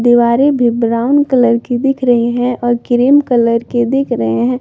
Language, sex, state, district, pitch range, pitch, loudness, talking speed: Hindi, female, Jharkhand, Palamu, 235-255 Hz, 240 Hz, -12 LUFS, 195 wpm